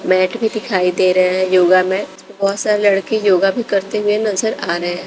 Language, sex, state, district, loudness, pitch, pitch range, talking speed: Hindi, female, Bihar, West Champaran, -16 LUFS, 195 Hz, 185-210 Hz, 225 wpm